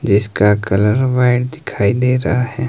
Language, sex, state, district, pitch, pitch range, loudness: Hindi, male, Himachal Pradesh, Shimla, 125 Hz, 105-125 Hz, -15 LUFS